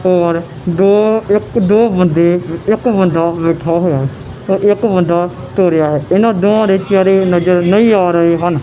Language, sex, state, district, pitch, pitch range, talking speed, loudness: Punjabi, male, Punjab, Kapurthala, 180 Hz, 170-200 Hz, 165 wpm, -12 LUFS